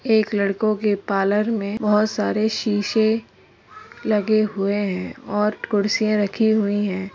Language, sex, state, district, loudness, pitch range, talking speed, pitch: Hindi, female, Uttar Pradesh, Varanasi, -21 LUFS, 205-220 Hz, 135 wpm, 210 Hz